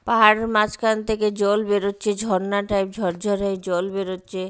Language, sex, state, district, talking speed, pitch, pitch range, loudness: Bengali, female, Odisha, Nuapada, 135 wpm, 200 Hz, 195-215 Hz, -22 LUFS